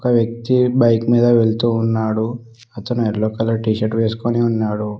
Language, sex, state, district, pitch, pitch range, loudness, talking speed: Telugu, male, Telangana, Mahabubabad, 115 Hz, 110-120 Hz, -17 LUFS, 130 wpm